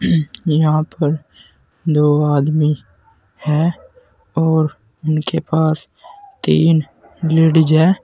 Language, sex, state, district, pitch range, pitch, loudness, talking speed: Hindi, male, Uttar Pradesh, Saharanpur, 150-160 Hz, 155 Hz, -16 LUFS, 80 wpm